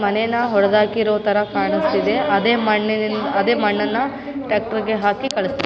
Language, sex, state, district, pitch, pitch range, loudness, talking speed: Kannada, female, Karnataka, Raichur, 215 Hz, 210-235 Hz, -18 LUFS, 125 wpm